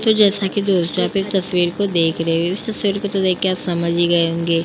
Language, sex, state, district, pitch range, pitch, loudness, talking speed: Hindi, female, Uttar Pradesh, Jyotiba Phule Nagar, 170-200 Hz, 185 Hz, -18 LUFS, 260 wpm